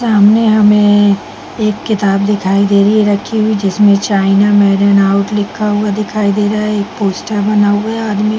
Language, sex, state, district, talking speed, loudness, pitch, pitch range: Hindi, female, Chhattisgarh, Bilaspur, 200 wpm, -11 LUFS, 205 Hz, 200-215 Hz